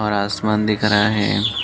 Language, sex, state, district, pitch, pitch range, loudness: Hindi, male, Chhattisgarh, Balrampur, 105 Hz, 100-105 Hz, -18 LUFS